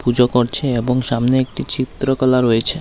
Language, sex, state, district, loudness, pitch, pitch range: Bengali, male, Tripura, West Tripura, -16 LUFS, 125 Hz, 120-130 Hz